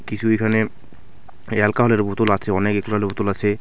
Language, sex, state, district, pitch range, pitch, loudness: Bengali, male, West Bengal, Alipurduar, 100-110 Hz, 105 Hz, -20 LUFS